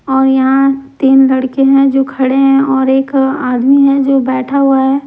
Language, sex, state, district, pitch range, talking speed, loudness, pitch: Hindi, male, Delhi, New Delhi, 265-275 Hz, 180 wpm, -10 LUFS, 270 Hz